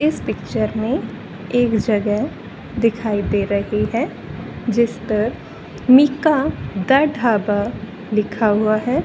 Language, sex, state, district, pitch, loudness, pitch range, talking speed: Hindi, female, Haryana, Rohtak, 220 Hz, -19 LUFS, 210-245 Hz, 115 wpm